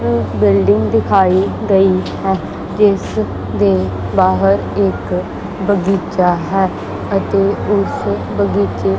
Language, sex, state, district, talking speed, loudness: Punjabi, female, Punjab, Kapurthala, 95 wpm, -15 LUFS